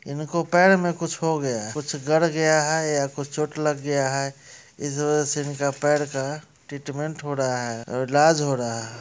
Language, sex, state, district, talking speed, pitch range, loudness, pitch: Hindi, male, Bihar, Muzaffarpur, 215 wpm, 140-155 Hz, -23 LUFS, 145 Hz